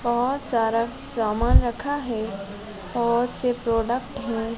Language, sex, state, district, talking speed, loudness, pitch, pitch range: Hindi, male, Madhya Pradesh, Dhar, 120 wpm, -24 LUFS, 235 Hz, 225-245 Hz